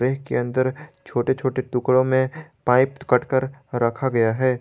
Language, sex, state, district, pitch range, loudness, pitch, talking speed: Hindi, male, Jharkhand, Garhwa, 125-135 Hz, -22 LUFS, 130 Hz, 155 wpm